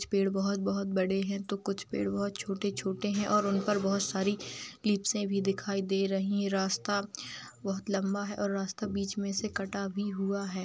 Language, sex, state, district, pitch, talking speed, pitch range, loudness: Hindi, female, Bihar, Saharsa, 200 Hz, 210 wpm, 195-205 Hz, -32 LUFS